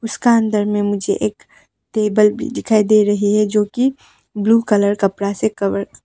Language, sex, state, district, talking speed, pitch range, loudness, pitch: Hindi, female, Arunachal Pradesh, Papum Pare, 190 wpm, 205-220 Hz, -17 LUFS, 210 Hz